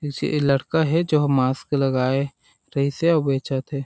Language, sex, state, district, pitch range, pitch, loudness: Chhattisgarhi, male, Chhattisgarh, Sarguja, 135-150 Hz, 140 Hz, -22 LUFS